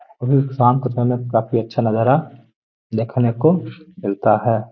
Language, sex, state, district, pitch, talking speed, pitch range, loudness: Hindi, male, Bihar, Gaya, 120 Hz, 150 wpm, 115-135 Hz, -18 LUFS